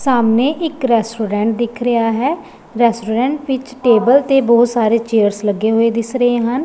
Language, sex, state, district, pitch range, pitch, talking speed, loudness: Punjabi, female, Punjab, Pathankot, 225-260 Hz, 235 Hz, 165 wpm, -15 LUFS